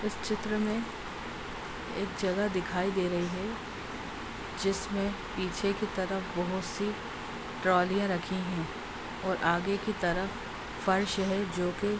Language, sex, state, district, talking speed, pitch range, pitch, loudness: Hindi, female, Uttar Pradesh, Deoria, 135 wpm, 185-205 Hz, 195 Hz, -32 LUFS